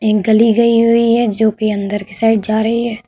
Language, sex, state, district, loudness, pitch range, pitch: Hindi, female, Uttar Pradesh, Budaun, -13 LUFS, 215-230 Hz, 220 Hz